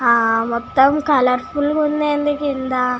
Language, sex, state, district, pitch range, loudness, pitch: Telugu, female, Telangana, Nalgonda, 250-295 Hz, -17 LUFS, 265 Hz